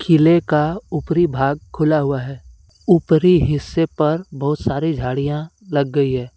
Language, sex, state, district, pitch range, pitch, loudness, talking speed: Hindi, male, Jharkhand, Deoghar, 140-165 Hz, 150 Hz, -18 LUFS, 150 wpm